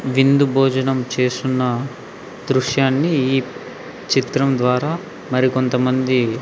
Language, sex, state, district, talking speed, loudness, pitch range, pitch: Telugu, male, Andhra Pradesh, Sri Satya Sai, 95 wpm, -18 LUFS, 125-135 Hz, 130 Hz